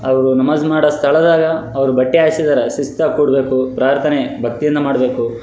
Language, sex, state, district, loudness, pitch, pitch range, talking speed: Kannada, male, Karnataka, Raichur, -14 LUFS, 140 Hz, 130-155 Hz, 135 wpm